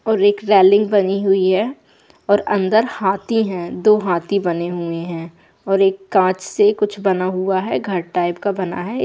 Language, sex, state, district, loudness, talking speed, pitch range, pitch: Hindi, female, Bihar, Madhepura, -17 LUFS, 185 wpm, 185-205 Hz, 195 Hz